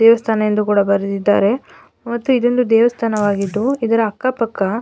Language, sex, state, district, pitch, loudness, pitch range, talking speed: Kannada, female, Karnataka, Mysore, 225 Hz, -16 LUFS, 205-235 Hz, 125 wpm